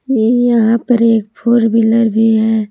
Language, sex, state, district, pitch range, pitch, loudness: Hindi, female, Jharkhand, Palamu, 220-235 Hz, 225 Hz, -12 LUFS